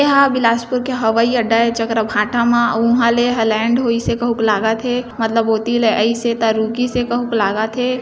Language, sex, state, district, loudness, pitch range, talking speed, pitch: Hindi, female, Chhattisgarh, Bilaspur, -16 LUFS, 225-245 Hz, 215 wpm, 235 Hz